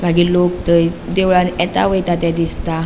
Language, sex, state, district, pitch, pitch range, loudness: Konkani, female, Goa, North and South Goa, 175 Hz, 170-180 Hz, -15 LUFS